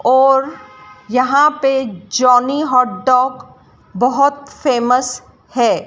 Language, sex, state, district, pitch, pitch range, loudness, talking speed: Hindi, female, Madhya Pradesh, Dhar, 255 Hz, 250-270 Hz, -15 LUFS, 90 wpm